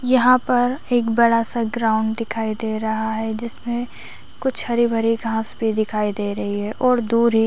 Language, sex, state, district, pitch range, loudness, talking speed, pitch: Hindi, female, Chhattisgarh, Raigarh, 220-240 Hz, -19 LUFS, 200 wpm, 230 Hz